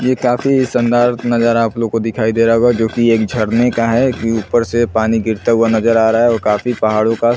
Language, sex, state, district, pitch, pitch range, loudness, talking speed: Hindi, male, Chhattisgarh, Bilaspur, 115 Hz, 115-120 Hz, -14 LUFS, 250 wpm